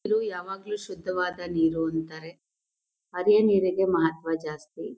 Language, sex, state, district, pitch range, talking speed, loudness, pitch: Kannada, female, Karnataka, Mysore, 160-195 Hz, 110 wpm, -26 LUFS, 180 Hz